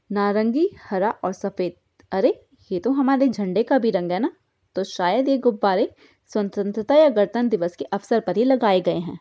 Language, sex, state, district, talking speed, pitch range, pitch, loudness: Hindi, female, Bihar, Jahanabad, 190 wpm, 190-260 Hz, 210 Hz, -22 LUFS